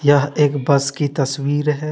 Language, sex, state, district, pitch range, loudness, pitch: Hindi, male, Jharkhand, Deoghar, 140-150 Hz, -18 LUFS, 145 Hz